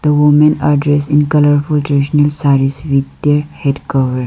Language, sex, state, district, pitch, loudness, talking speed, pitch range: English, female, Arunachal Pradesh, Lower Dibang Valley, 145 Hz, -13 LUFS, 155 wpm, 140-150 Hz